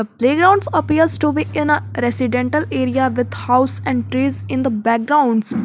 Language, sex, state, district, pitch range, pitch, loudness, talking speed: English, female, Jharkhand, Garhwa, 225-295 Hz, 250 Hz, -17 LUFS, 170 wpm